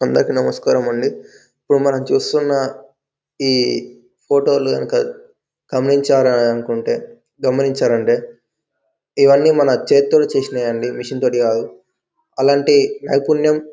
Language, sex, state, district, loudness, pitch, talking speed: Telugu, male, Telangana, Karimnagar, -16 LUFS, 140 Hz, 95 wpm